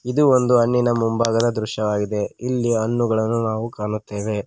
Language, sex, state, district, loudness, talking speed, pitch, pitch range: Kannada, male, Karnataka, Koppal, -20 LUFS, 120 wpm, 115 Hz, 105-120 Hz